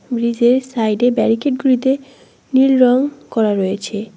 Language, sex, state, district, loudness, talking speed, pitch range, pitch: Bengali, female, West Bengal, Cooch Behar, -16 LUFS, 115 wpm, 220-265 Hz, 245 Hz